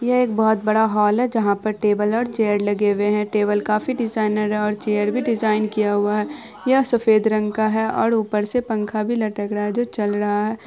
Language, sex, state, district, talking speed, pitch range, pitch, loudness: Hindi, female, Bihar, Araria, 235 wpm, 210-225 Hz, 215 Hz, -20 LUFS